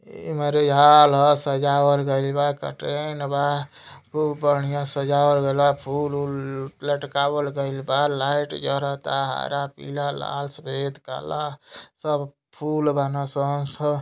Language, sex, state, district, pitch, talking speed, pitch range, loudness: Hindi, male, Uttar Pradesh, Gorakhpur, 145 Hz, 140 wpm, 140-145 Hz, -22 LUFS